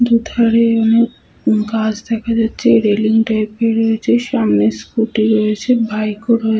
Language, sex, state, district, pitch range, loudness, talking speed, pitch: Bengali, female, West Bengal, Paschim Medinipur, 215-230 Hz, -15 LUFS, 155 wpm, 225 Hz